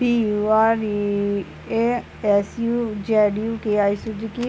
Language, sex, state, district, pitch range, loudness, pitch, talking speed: Hindi, male, Bihar, Purnia, 205-230 Hz, -21 LUFS, 215 Hz, 120 wpm